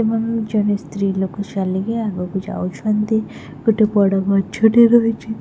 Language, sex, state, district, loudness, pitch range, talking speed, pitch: Odia, female, Odisha, Khordha, -18 LUFS, 195-225 Hz, 110 wpm, 210 Hz